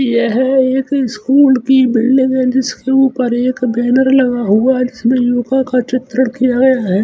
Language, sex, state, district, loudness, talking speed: Hindi, male, Chandigarh, Chandigarh, -13 LUFS, 170 wpm